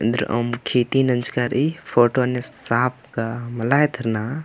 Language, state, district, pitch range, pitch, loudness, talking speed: Kurukh, Chhattisgarh, Jashpur, 120-130 Hz, 120 Hz, -21 LUFS, 120 wpm